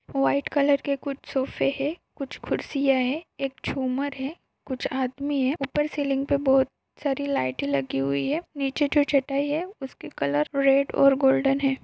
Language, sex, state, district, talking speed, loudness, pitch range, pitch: Hindi, female, Maharashtra, Pune, 170 wpm, -25 LUFS, 265-285 Hz, 275 Hz